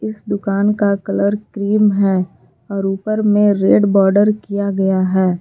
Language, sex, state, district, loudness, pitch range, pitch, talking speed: Hindi, female, Jharkhand, Palamu, -16 LUFS, 195-210 Hz, 200 Hz, 155 wpm